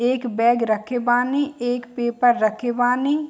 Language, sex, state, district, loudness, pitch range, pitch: Bhojpuri, female, Bihar, East Champaran, -21 LUFS, 240-250 Hz, 245 Hz